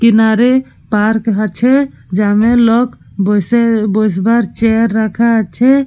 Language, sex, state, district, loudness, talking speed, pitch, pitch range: Bengali, female, Jharkhand, Jamtara, -12 LUFS, 100 wpm, 225 Hz, 210-235 Hz